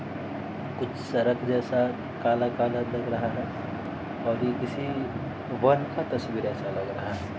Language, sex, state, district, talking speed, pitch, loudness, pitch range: Hindi, male, Uttar Pradesh, Etah, 140 wpm, 120 Hz, -29 LUFS, 115-125 Hz